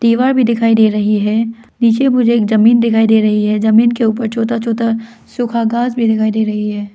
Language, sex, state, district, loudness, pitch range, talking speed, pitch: Hindi, female, Arunachal Pradesh, Lower Dibang Valley, -13 LUFS, 220-235 Hz, 225 wpm, 225 Hz